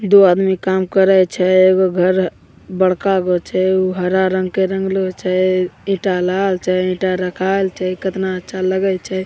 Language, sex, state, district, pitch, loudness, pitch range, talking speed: Hindi, female, Bihar, Begusarai, 185 Hz, -16 LUFS, 185-190 Hz, 170 wpm